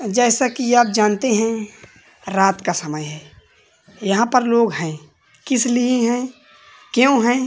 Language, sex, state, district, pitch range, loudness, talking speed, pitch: Hindi, male, Uttar Pradesh, Varanasi, 195-245 Hz, -18 LUFS, 145 wpm, 235 Hz